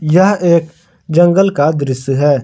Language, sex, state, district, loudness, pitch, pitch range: Hindi, male, Jharkhand, Garhwa, -12 LUFS, 160 Hz, 145-175 Hz